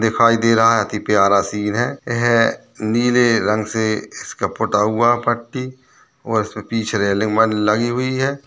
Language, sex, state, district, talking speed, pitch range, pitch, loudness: Hindi, male, Chhattisgarh, Balrampur, 175 wpm, 105-120 Hz, 115 Hz, -18 LUFS